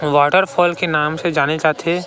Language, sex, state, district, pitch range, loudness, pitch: Chhattisgarhi, male, Chhattisgarh, Rajnandgaon, 150-175 Hz, -16 LUFS, 160 Hz